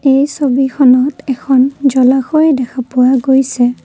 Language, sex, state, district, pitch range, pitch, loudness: Assamese, female, Assam, Kamrup Metropolitan, 255-275 Hz, 265 Hz, -12 LUFS